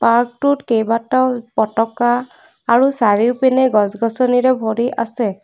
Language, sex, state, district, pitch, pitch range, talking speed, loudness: Assamese, female, Assam, Kamrup Metropolitan, 240 Hz, 225-255 Hz, 100 wpm, -16 LUFS